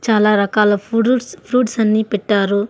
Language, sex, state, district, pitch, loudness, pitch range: Telugu, female, Andhra Pradesh, Annamaya, 215 Hz, -16 LUFS, 205-230 Hz